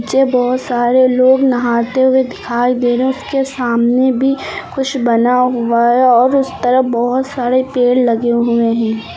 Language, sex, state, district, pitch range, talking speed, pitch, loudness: Hindi, female, Uttar Pradesh, Lucknow, 240-260 Hz, 170 wpm, 250 Hz, -13 LUFS